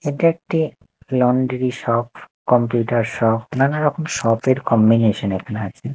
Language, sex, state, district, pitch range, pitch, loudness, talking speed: Bengali, male, Odisha, Nuapada, 115-135 Hz, 125 Hz, -19 LUFS, 120 wpm